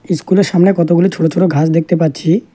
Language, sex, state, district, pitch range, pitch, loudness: Bengali, male, West Bengal, Alipurduar, 165-185 Hz, 175 Hz, -13 LUFS